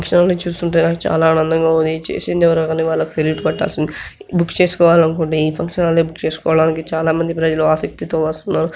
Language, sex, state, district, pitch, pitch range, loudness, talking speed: Telugu, male, Telangana, Nalgonda, 160 Hz, 160-170 Hz, -16 LUFS, 200 wpm